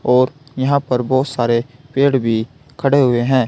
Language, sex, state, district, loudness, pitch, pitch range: Hindi, male, Uttar Pradesh, Saharanpur, -17 LUFS, 130 Hz, 125-140 Hz